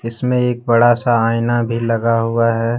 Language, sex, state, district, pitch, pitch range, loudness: Hindi, male, Jharkhand, Deoghar, 115 Hz, 115-120 Hz, -16 LUFS